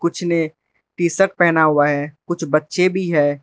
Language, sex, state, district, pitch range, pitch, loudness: Hindi, male, Arunachal Pradesh, Lower Dibang Valley, 150-175 Hz, 165 Hz, -18 LUFS